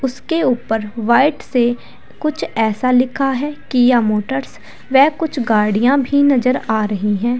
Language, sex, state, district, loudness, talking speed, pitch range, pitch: Hindi, female, Uttar Pradesh, Saharanpur, -16 LUFS, 145 wpm, 220-270 Hz, 250 Hz